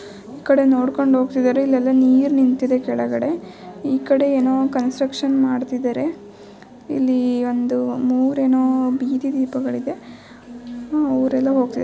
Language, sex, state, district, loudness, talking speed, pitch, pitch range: Kannada, female, Karnataka, Bijapur, -19 LUFS, 115 wpm, 260 Hz, 250-270 Hz